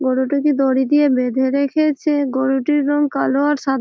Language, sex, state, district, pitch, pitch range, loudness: Bengali, female, West Bengal, Malda, 280 Hz, 265-290 Hz, -17 LUFS